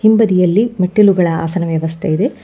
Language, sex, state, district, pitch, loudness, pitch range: Kannada, female, Karnataka, Bangalore, 180 Hz, -14 LUFS, 165-215 Hz